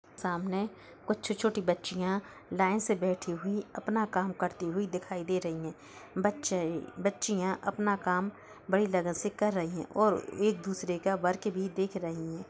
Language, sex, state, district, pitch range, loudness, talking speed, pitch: Hindi, female, Uttar Pradesh, Hamirpur, 180-205 Hz, -32 LUFS, 170 wpm, 190 Hz